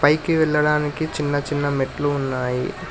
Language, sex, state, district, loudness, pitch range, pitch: Telugu, male, Telangana, Hyderabad, -21 LUFS, 140-150 Hz, 145 Hz